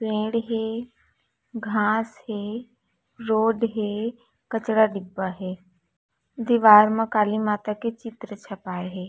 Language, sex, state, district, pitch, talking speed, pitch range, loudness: Chhattisgarhi, female, Chhattisgarh, Raigarh, 220 Hz, 110 wpm, 210-230 Hz, -23 LUFS